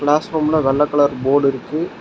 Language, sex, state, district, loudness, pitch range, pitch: Tamil, male, Tamil Nadu, Nilgiris, -17 LUFS, 140-155 Hz, 145 Hz